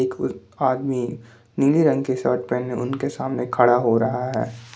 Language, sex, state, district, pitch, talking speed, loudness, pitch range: Hindi, male, Jharkhand, Garhwa, 125 Hz, 150 wpm, -22 LUFS, 120-130 Hz